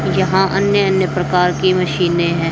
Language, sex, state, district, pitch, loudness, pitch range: Hindi, female, Haryana, Charkhi Dadri, 180 Hz, -15 LUFS, 175-190 Hz